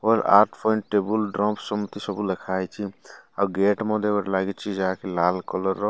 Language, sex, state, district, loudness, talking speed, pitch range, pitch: Odia, male, Odisha, Malkangiri, -24 LUFS, 175 wpm, 95-105 Hz, 100 Hz